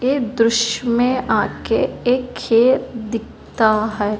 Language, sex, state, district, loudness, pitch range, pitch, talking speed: Hindi, female, Telangana, Hyderabad, -18 LUFS, 225-250 Hz, 235 Hz, 115 wpm